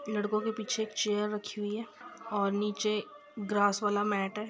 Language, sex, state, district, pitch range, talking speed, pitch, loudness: Hindi, female, Bihar, Sitamarhi, 205-215 Hz, 185 wpm, 210 Hz, -32 LUFS